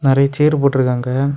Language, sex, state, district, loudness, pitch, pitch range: Tamil, male, Tamil Nadu, Kanyakumari, -15 LUFS, 135 Hz, 130-140 Hz